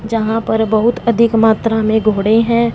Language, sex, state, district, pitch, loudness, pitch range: Hindi, female, Punjab, Fazilka, 225 Hz, -14 LUFS, 220-230 Hz